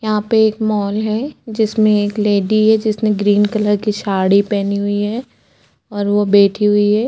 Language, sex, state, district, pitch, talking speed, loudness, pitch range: Hindi, female, Goa, North and South Goa, 210 Hz, 185 wpm, -15 LUFS, 205-215 Hz